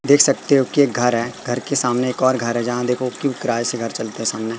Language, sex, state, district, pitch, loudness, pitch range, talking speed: Hindi, male, Madhya Pradesh, Katni, 125 Hz, -19 LUFS, 120-135 Hz, 300 wpm